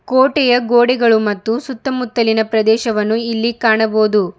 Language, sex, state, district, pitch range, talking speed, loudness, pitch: Kannada, female, Karnataka, Bidar, 220-245 Hz, 95 wpm, -15 LUFS, 225 Hz